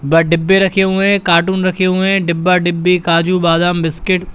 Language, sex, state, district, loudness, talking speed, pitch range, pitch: Hindi, male, Uttar Pradesh, Shamli, -13 LUFS, 205 wpm, 170-190 Hz, 180 Hz